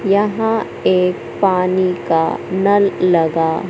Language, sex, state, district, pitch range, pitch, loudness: Hindi, male, Madhya Pradesh, Katni, 175-200 Hz, 185 Hz, -16 LUFS